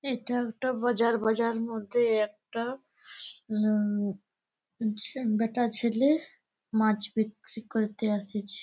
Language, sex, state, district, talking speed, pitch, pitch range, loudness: Bengali, female, West Bengal, Malda, 95 wpm, 225 Hz, 215-240 Hz, -29 LUFS